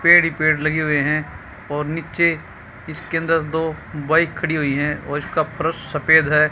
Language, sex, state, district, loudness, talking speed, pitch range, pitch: Hindi, female, Haryana, Charkhi Dadri, -19 LUFS, 185 wpm, 150-160 Hz, 155 Hz